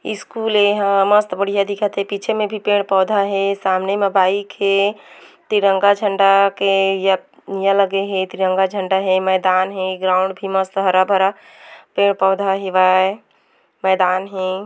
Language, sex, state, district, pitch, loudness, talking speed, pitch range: Hindi, female, Chhattisgarh, Korba, 195 Hz, -17 LUFS, 145 wpm, 190-200 Hz